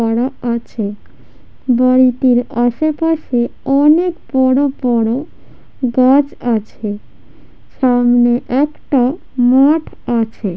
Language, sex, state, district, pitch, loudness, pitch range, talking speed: Bengali, female, West Bengal, Jhargram, 250 Hz, -14 LUFS, 240-280 Hz, 80 wpm